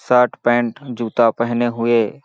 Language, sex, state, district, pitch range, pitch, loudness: Hindi, male, Chhattisgarh, Balrampur, 115-125 Hz, 120 Hz, -18 LUFS